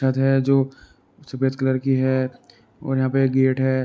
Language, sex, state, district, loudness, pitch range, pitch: Hindi, male, Uttar Pradesh, Jalaun, -21 LUFS, 130-135 Hz, 130 Hz